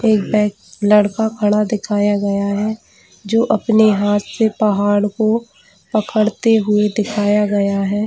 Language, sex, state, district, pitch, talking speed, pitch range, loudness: Hindi, female, Jharkhand, Jamtara, 210 Hz, 140 wpm, 205-220 Hz, -16 LUFS